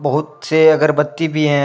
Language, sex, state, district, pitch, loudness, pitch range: Hindi, male, Jharkhand, Deoghar, 155 Hz, -15 LUFS, 150-155 Hz